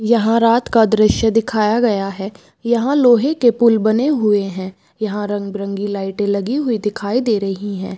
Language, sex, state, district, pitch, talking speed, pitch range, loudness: Hindi, female, Bihar, Madhepura, 215 Hz, 175 wpm, 200-235 Hz, -16 LUFS